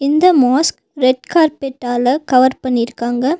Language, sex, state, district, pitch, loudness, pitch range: Tamil, female, Tamil Nadu, Nilgiris, 260 Hz, -15 LUFS, 250-290 Hz